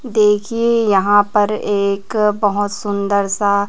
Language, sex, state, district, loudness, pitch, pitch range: Hindi, female, Chhattisgarh, Raipur, -16 LUFS, 205 Hz, 200-210 Hz